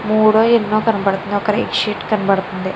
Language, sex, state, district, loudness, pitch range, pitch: Telugu, female, Andhra Pradesh, Chittoor, -16 LUFS, 195-215 Hz, 210 Hz